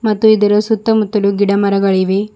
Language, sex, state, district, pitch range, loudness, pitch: Kannada, female, Karnataka, Bidar, 200-215 Hz, -13 LUFS, 205 Hz